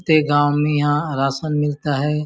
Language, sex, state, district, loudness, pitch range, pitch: Hindi, male, Chhattisgarh, Bastar, -19 LUFS, 145-150 Hz, 150 Hz